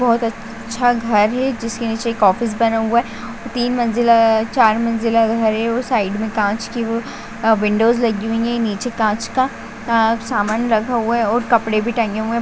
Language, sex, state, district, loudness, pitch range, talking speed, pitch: Hindi, female, Bihar, Saran, -17 LUFS, 220-235 Hz, 205 wpm, 230 Hz